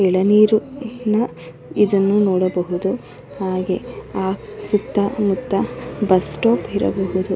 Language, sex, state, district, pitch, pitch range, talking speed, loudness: Kannada, female, Karnataka, Dharwad, 195 Hz, 185-210 Hz, 90 wpm, -19 LUFS